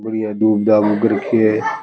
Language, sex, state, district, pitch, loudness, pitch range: Rajasthani, male, Rajasthan, Churu, 110 Hz, -16 LUFS, 105-110 Hz